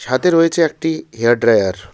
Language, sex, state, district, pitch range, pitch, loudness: Bengali, male, West Bengal, Darjeeling, 115-165 Hz, 130 Hz, -15 LUFS